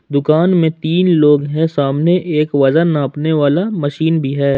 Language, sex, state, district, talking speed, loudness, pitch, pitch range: Hindi, male, Jharkhand, Ranchi, 155 wpm, -14 LUFS, 155 Hz, 145-165 Hz